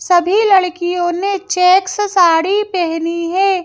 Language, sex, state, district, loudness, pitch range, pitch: Hindi, female, Madhya Pradesh, Bhopal, -14 LUFS, 350-390 Hz, 365 Hz